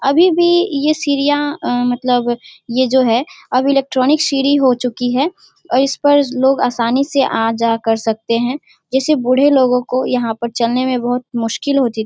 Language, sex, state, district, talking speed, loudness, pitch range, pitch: Hindi, female, Bihar, Darbhanga, 190 wpm, -15 LUFS, 245-280 Hz, 260 Hz